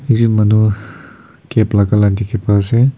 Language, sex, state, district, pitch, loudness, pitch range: Nagamese, male, Nagaland, Kohima, 110 Hz, -14 LUFS, 105-115 Hz